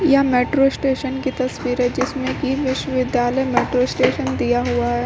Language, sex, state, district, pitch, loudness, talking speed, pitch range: Hindi, female, Uttar Pradesh, Lucknow, 260 Hz, -19 LUFS, 155 wpm, 245-270 Hz